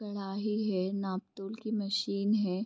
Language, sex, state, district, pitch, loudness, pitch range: Hindi, female, Bihar, Vaishali, 200 Hz, -33 LUFS, 195-215 Hz